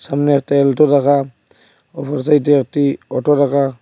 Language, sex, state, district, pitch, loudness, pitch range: Bengali, male, Assam, Hailakandi, 140 Hz, -15 LUFS, 135-145 Hz